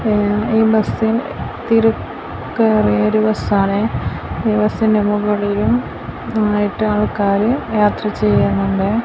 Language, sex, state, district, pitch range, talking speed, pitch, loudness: Malayalam, female, Kerala, Kasaragod, 205-220 Hz, 80 wpm, 210 Hz, -16 LUFS